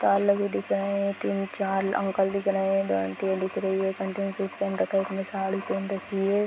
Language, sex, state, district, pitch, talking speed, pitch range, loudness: Hindi, female, Jharkhand, Sahebganj, 195 Hz, 280 wpm, 195-200 Hz, -27 LUFS